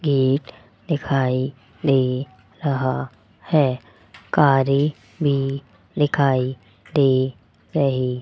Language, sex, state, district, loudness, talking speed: Hindi, male, Rajasthan, Jaipur, -21 LUFS, 80 wpm